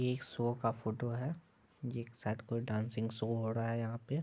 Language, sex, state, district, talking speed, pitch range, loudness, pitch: Hindi, male, Bihar, Madhepura, 215 wpm, 115-125 Hz, -39 LUFS, 115 Hz